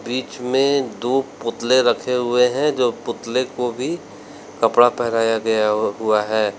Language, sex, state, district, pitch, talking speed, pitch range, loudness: Hindi, male, Uttar Pradesh, Lalitpur, 120 Hz, 145 wpm, 115-130 Hz, -19 LUFS